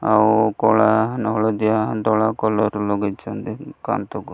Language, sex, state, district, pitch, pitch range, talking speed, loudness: Odia, male, Odisha, Malkangiri, 110 Hz, 105-110 Hz, 110 wpm, -19 LUFS